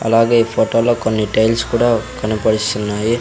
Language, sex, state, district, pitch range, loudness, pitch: Telugu, male, Andhra Pradesh, Sri Satya Sai, 110-115 Hz, -16 LUFS, 115 Hz